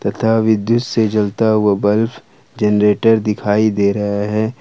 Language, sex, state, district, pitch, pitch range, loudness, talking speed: Hindi, male, Jharkhand, Ranchi, 110 Hz, 105-110 Hz, -15 LUFS, 145 wpm